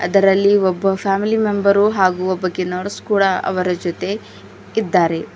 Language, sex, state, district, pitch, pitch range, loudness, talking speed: Kannada, female, Karnataka, Bidar, 195 Hz, 185-200 Hz, -17 LUFS, 125 wpm